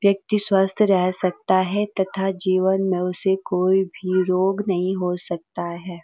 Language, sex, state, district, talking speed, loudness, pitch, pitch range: Hindi, female, Uttarakhand, Uttarkashi, 160 wpm, -21 LUFS, 185 Hz, 180-195 Hz